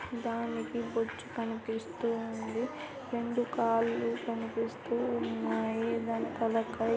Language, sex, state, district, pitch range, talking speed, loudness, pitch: Telugu, female, Andhra Pradesh, Anantapur, 225-235 Hz, 95 wpm, -34 LUFS, 230 Hz